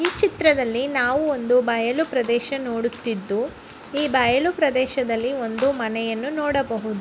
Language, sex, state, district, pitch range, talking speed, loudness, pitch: Kannada, female, Karnataka, Bellary, 235-285 Hz, 110 wpm, -21 LUFS, 255 Hz